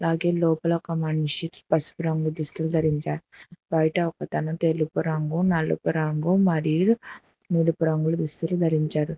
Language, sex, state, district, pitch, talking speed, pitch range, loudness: Telugu, female, Telangana, Hyderabad, 160 Hz, 125 wpm, 155-170 Hz, -23 LUFS